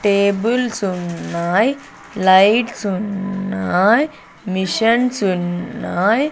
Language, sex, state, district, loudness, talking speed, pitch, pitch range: Telugu, female, Andhra Pradesh, Sri Satya Sai, -17 LUFS, 55 wpm, 200 Hz, 185-225 Hz